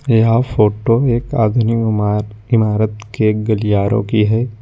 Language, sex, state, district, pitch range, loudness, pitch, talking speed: Hindi, male, Jharkhand, Ranchi, 105-115 Hz, -15 LUFS, 110 Hz, 115 wpm